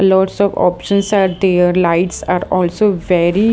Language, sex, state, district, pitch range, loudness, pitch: English, female, Haryana, Jhajjar, 180-200 Hz, -14 LUFS, 190 Hz